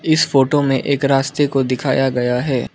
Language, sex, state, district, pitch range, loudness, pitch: Hindi, male, Arunachal Pradesh, Lower Dibang Valley, 130-145 Hz, -16 LUFS, 135 Hz